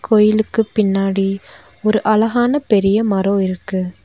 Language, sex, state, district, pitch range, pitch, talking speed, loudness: Tamil, female, Tamil Nadu, Nilgiris, 195-215 Hz, 210 Hz, 105 wpm, -16 LUFS